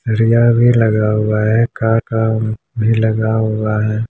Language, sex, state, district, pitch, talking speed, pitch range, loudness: Hindi, male, Bihar, Muzaffarpur, 110 Hz, 160 wpm, 110-115 Hz, -15 LUFS